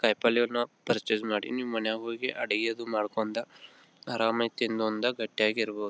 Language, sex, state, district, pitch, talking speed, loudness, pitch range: Kannada, male, Karnataka, Belgaum, 115 Hz, 120 wpm, -29 LUFS, 110-120 Hz